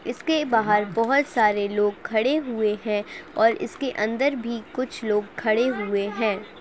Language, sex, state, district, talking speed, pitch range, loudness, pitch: Hindi, male, Uttar Pradesh, Jalaun, 155 wpm, 210-250 Hz, -24 LUFS, 225 Hz